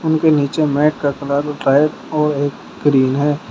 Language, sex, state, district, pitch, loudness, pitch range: Hindi, male, Uttar Pradesh, Shamli, 145 Hz, -16 LUFS, 140-150 Hz